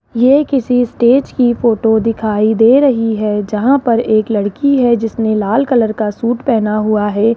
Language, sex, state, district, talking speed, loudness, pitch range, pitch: Hindi, female, Rajasthan, Jaipur, 180 wpm, -13 LUFS, 215-245 Hz, 230 Hz